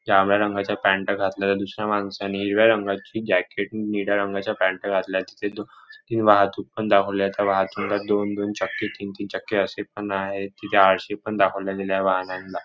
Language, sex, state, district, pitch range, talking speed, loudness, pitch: Marathi, male, Maharashtra, Chandrapur, 95-105 Hz, 155 wpm, -23 LUFS, 100 Hz